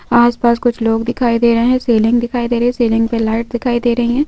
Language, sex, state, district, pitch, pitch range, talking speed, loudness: Hindi, female, West Bengal, North 24 Parganas, 240 Hz, 230-240 Hz, 265 wpm, -14 LUFS